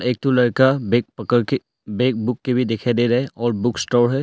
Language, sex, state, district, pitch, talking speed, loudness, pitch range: Hindi, male, Arunachal Pradesh, Longding, 120 Hz, 255 wpm, -19 LUFS, 120-125 Hz